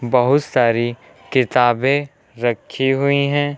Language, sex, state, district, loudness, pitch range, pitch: Hindi, male, Uttar Pradesh, Lucknow, -18 LUFS, 120-140 Hz, 130 Hz